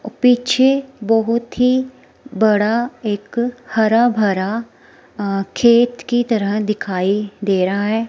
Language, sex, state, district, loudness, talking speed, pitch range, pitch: Hindi, female, Himachal Pradesh, Shimla, -17 LUFS, 110 wpm, 205-245 Hz, 225 Hz